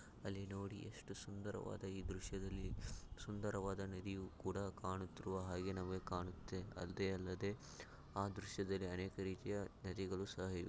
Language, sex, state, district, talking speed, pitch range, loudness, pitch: Kannada, male, Karnataka, Shimoga, 125 wpm, 95-100 Hz, -47 LUFS, 95 Hz